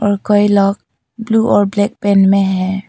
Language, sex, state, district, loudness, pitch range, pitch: Hindi, female, Arunachal Pradesh, Papum Pare, -13 LUFS, 195-205 Hz, 205 Hz